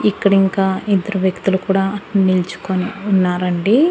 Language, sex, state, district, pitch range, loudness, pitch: Telugu, female, Andhra Pradesh, Annamaya, 185-200 Hz, -17 LUFS, 195 Hz